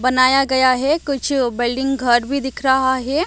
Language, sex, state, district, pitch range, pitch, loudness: Hindi, female, Odisha, Malkangiri, 255-275 Hz, 265 Hz, -17 LUFS